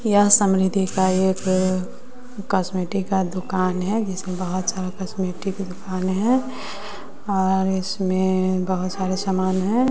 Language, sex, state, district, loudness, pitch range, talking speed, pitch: Hindi, female, Bihar, West Champaran, -22 LUFS, 185-195 Hz, 125 wpm, 190 Hz